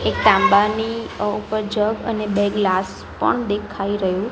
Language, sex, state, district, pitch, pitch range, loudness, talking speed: Gujarati, female, Gujarat, Gandhinagar, 210 Hz, 200-215 Hz, -20 LUFS, 140 wpm